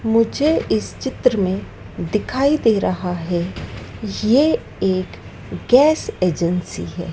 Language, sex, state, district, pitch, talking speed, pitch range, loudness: Hindi, female, Madhya Pradesh, Dhar, 200 Hz, 110 wpm, 180-255 Hz, -19 LUFS